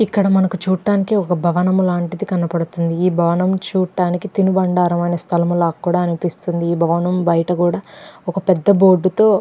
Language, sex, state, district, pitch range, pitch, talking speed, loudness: Telugu, female, Andhra Pradesh, Krishna, 175-190 Hz, 180 Hz, 125 wpm, -17 LUFS